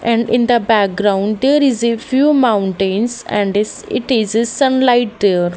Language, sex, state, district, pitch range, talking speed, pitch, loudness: English, female, Haryana, Jhajjar, 205-245 Hz, 170 wpm, 230 Hz, -15 LUFS